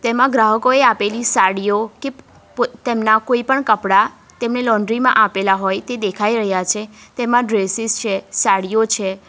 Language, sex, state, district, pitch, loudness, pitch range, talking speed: Gujarati, female, Gujarat, Valsad, 220 Hz, -16 LUFS, 200-240 Hz, 155 wpm